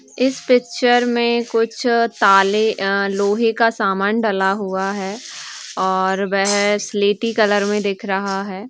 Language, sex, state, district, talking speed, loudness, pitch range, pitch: Hindi, female, Bihar, East Champaran, 140 wpm, -17 LUFS, 195-230 Hz, 205 Hz